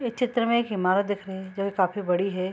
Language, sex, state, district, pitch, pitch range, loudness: Hindi, female, Bihar, Saharsa, 195 Hz, 185-230 Hz, -26 LUFS